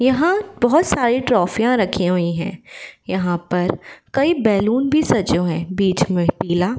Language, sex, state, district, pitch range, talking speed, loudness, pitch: Hindi, female, Uttar Pradesh, Varanasi, 180-255 Hz, 170 wpm, -18 LUFS, 195 Hz